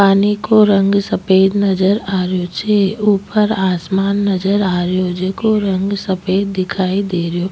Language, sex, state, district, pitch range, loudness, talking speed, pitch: Rajasthani, female, Rajasthan, Nagaur, 185-200 Hz, -15 LUFS, 150 wpm, 195 Hz